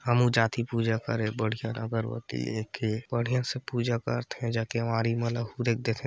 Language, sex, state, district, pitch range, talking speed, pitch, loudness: Hindi, male, Chhattisgarh, Sarguja, 115-120 Hz, 120 wpm, 115 Hz, -29 LUFS